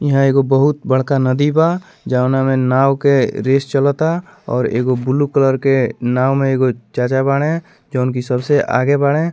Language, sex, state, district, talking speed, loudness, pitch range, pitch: Bhojpuri, male, Bihar, Muzaffarpur, 175 wpm, -16 LUFS, 130-145 Hz, 135 Hz